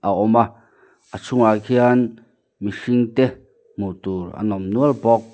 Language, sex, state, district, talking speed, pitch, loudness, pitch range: Mizo, male, Mizoram, Aizawl, 135 wpm, 115 Hz, -19 LUFS, 105-125 Hz